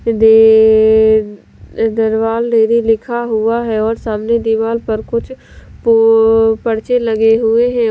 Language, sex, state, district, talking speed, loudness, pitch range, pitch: Hindi, female, Delhi, New Delhi, 120 wpm, -12 LUFS, 220-230 Hz, 225 Hz